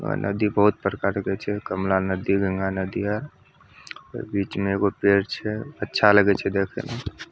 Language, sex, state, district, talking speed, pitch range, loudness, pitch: Maithili, male, Bihar, Samastipur, 180 wpm, 95-105 Hz, -23 LUFS, 100 Hz